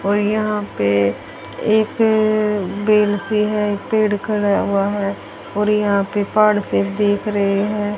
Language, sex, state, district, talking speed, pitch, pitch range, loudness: Hindi, female, Haryana, Charkhi Dadri, 145 wpm, 205 Hz, 200-210 Hz, -18 LUFS